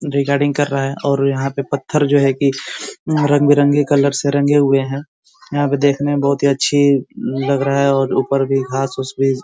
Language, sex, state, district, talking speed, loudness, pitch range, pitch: Hindi, male, Uttar Pradesh, Ghazipur, 225 wpm, -16 LUFS, 135-145 Hz, 140 Hz